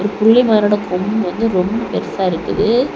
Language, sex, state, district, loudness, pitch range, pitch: Tamil, female, Tamil Nadu, Kanyakumari, -16 LUFS, 190-225 Hz, 210 Hz